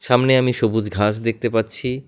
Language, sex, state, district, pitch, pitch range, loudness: Bengali, male, West Bengal, Alipurduar, 115 Hz, 110-125 Hz, -19 LUFS